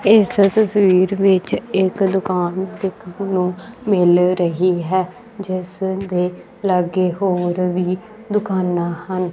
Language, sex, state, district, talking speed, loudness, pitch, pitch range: Punjabi, female, Punjab, Kapurthala, 110 wpm, -18 LUFS, 185 Hz, 180-200 Hz